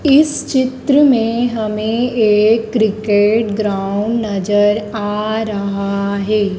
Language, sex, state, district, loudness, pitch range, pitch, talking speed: Hindi, female, Madhya Pradesh, Dhar, -15 LUFS, 205-235 Hz, 215 Hz, 100 wpm